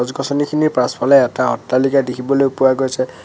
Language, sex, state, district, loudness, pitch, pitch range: Assamese, male, Assam, Sonitpur, -16 LUFS, 135 Hz, 130-140 Hz